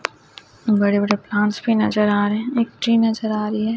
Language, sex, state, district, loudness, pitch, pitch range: Hindi, male, Chhattisgarh, Raipur, -19 LUFS, 215 Hz, 205-230 Hz